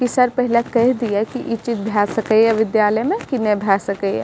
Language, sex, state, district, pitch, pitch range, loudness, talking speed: Maithili, female, Bihar, Madhepura, 225 Hz, 210-245 Hz, -18 LUFS, 255 wpm